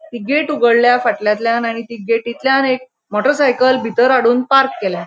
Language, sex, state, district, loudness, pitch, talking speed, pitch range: Konkani, female, Goa, North and South Goa, -15 LUFS, 240 Hz, 165 wpm, 230-265 Hz